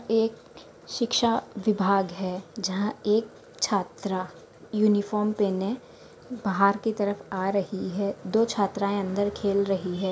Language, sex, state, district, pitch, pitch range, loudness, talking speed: Hindi, female, Chhattisgarh, Bastar, 200 Hz, 195-220 Hz, -27 LUFS, 130 wpm